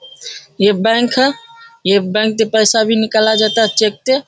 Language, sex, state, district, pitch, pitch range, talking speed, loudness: Hindi, female, Bihar, Darbhanga, 225 Hz, 215-270 Hz, 195 wpm, -13 LUFS